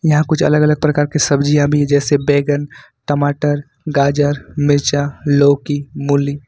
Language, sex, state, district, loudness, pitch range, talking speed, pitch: Hindi, male, Jharkhand, Ranchi, -15 LUFS, 145-150 Hz, 140 wpm, 145 Hz